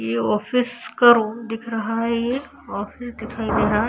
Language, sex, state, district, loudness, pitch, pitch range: Hindi, female, Uttar Pradesh, Budaun, -21 LUFS, 230 Hz, 220-240 Hz